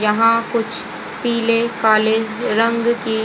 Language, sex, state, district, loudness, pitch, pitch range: Hindi, female, Haryana, Rohtak, -17 LUFS, 230 Hz, 220-230 Hz